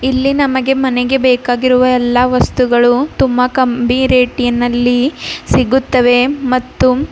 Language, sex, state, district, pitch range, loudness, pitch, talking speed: Kannada, female, Karnataka, Bidar, 245-260 Hz, -12 LUFS, 255 Hz, 100 wpm